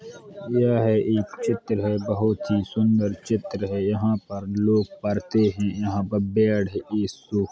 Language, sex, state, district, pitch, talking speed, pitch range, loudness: Hindi, male, Uttar Pradesh, Hamirpur, 105 Hz, 135 wpm, 100-110 Hz, -24 LUFS